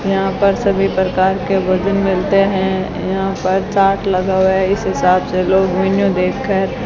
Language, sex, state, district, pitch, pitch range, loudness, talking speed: Hindi, female, Rajasthan, Bikaner, 190 Hz, 190-195 Hz, -15 LUFS, 185 wpm